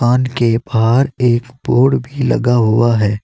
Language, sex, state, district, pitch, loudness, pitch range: Hindi, male, Uttar Pradesh, Saharanpur, 120 Hz, -14 LUFS, 115-130 Hz